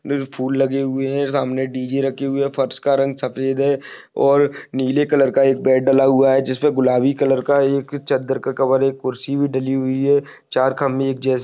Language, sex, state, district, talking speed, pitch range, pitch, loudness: Hindi, male, Jharkhand, Sahebganj, 215 wpm, 130-140 Hz, 135 Hz, -18 LUFS